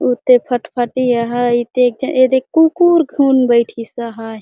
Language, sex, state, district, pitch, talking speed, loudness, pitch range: Chhattisgarhi, female, Chhattisgarh, Jashpur, 250 Hz, 150 wpm, -14 LUFS, 240-265 Hz